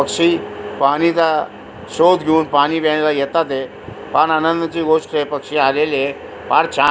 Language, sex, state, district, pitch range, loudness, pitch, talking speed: Marathi, male, Maharashtra, Aurangabad, 140-165 Hz, -16 LUFS, 155 Hz, 140 wpm